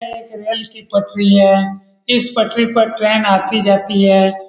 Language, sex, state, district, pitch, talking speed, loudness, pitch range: Hindi, male, Bihar, Lakhisarai, 205 Hz, 175 wpm, -14 LUFS, 195-225 Hz